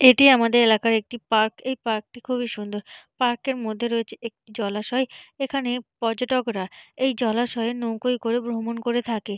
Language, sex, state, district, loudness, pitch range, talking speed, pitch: Bengali, female, West Bengal, Purulia, -23 LUFS, 220-250 Hz, 160 wpm, 235 Hz